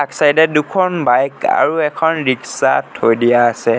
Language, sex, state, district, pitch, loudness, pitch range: Assamese, male, Assam, Sonitpur, 140 Hz, -14 LUFS, 120-160 Hz